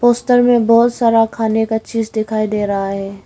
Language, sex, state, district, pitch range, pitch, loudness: Hindi, female, Arunachal Pradesh, Longding, 215-235 Hz, 225 Hz, -15 LUFS